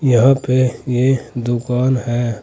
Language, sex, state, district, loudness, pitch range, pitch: Hindi, male, Uttar Pradesh, Saharanpur, -16 LUFS, 120-130 Hz, 125 Hz